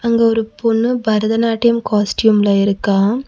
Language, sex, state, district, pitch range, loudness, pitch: Tamil, female, Tamil Nadu, Nilgiris, 205-230 Hz, -15 LUFS, 225 Hz